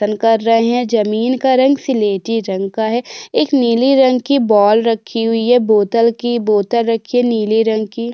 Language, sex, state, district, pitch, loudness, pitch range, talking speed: Hindi, female, Uttarakhand, Tehri Garhwal, 230 Hz, -14 LUFS, 220-245 Hz, 200 wpm